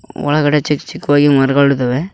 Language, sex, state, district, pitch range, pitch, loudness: Kannada, male, Karnataka, Koppal, 140-150 Hz, 145 Hz, -14 LUFS